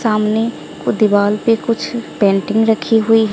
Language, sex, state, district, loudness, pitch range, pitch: Hindi, female, Odisha, Sambalpur, -15 LUFS, 210-225 Hz, 220 Hz